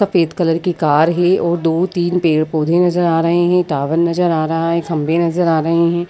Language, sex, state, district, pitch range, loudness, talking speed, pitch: Hindi, female, Uttar Pradesh, Jyotiba Phule Nagar, 165-175 Hz, -15 LUFS, 235 wpm, 170 Hz